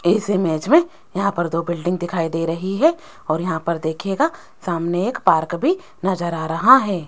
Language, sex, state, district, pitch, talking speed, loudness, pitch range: Hindi, female, Rajasthan, Jaipur, 180 Hz, 195 wpm, -20 LUFS, 165-215 Hz